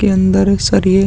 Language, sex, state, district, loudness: Hindi, male, Chhattisgarh, Sukma, -12 LUFS